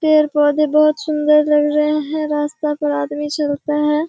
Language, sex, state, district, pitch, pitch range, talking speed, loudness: Hindi, female, Bihar, Kishanganj, 300 Hz, 295-305 Hz, 160 wpm, -17 LUFS